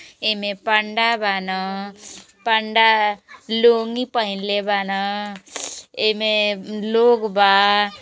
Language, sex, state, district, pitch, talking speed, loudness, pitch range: Bhojpuri, female, Uttar Pradesh, Gorakhpur, 210 Hz, 75 wpm, -19 LUFS, 200-225 Hz